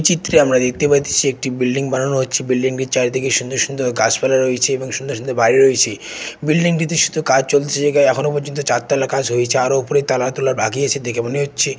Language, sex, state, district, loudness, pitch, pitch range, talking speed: Bengali, male, West Bengal, Jalpaiguri, -16 LUFS, 135 Hz, 125-140 Hz, 215 wpm